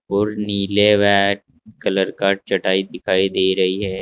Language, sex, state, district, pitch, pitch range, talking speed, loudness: Hindi, male, Uttar Pradesh, Saharanpur, 100 Hz, 95-100 Hz, 150 wpm, -18 LUFS